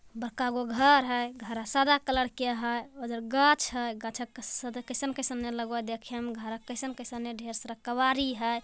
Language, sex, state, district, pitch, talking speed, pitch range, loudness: Magahi, female, Bihar, Jamui, 245 Hz, 230 wpm, 235-260 Hz, -30 LUFS